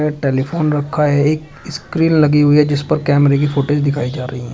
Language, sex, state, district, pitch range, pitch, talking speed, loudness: Hindi, male, Uttar Pradesh, Shamli, 140-150 Hz, 145 Hz, 240 wpm, -15 LUFS